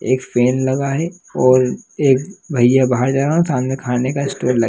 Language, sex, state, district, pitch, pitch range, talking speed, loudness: Hindi, male, Bihar, Jahanabad, 130 Hz, 125-140 Hz, 205 wpm, -17 LUFS